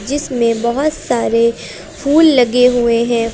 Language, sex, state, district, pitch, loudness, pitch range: Hindi, female, Uttar Pradesh, Lucknow, 240 Hz, -14 LUFS, 235-285 Hz